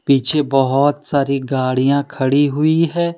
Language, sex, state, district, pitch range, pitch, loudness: Hindi, male, Jharkhand, Deoghar, 135-150 Hz, 140 Hz, -16 LUFS